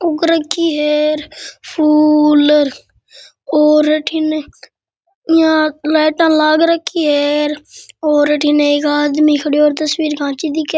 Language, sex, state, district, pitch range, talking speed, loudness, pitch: Rajasthani, male, Rajasthan, Nagaur, 295-315 Hz, 105 wpm, -13 LUFS, 305 Hz